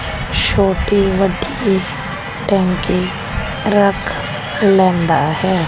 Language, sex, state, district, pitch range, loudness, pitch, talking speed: Punjabi, female, Punjab, Kapurthala, 180-195 Hz, -16 LUFS, 190 Hz, 65 wpm